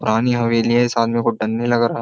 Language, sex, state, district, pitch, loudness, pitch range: Hindi, male, Uttar Pradesh, Jyotiba Phule Nagar, 115 Hz, -18 LUFS, 115-120 Hz